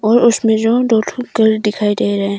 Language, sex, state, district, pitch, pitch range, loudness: Hindi, female, Arunachal Pradesh, Longding, 220 Hz, 210-235 Hz, -14 LUFS